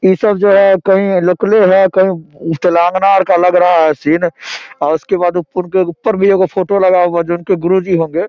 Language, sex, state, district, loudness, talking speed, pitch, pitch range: Maithili, male, Bihar, Samastipur, -12 LUFS, 215 wpm, 185 Hz, 175-190 Hz